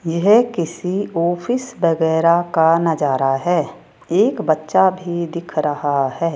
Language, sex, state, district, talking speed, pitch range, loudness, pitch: Hindi, female, Rajasthan, Jaipur, 120 wpm, 155-180 Hz, -18 LUFS, 170 Hz